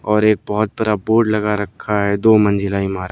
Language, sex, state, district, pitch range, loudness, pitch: Hindi, male, Bihar, West Champaran, 100-110 Hz, -17 LUFS, 105 Hz